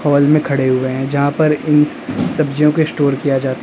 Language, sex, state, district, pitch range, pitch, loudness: Hindi, male, Uttar Pradesh, Lalitpur, 135-150 Hz, 145 Hz, -15 LUFS